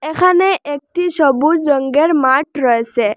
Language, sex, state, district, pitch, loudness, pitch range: Bengali, female, Assam, Hailakandi, 290 Hz, -14 LUFS, 265-330 Hz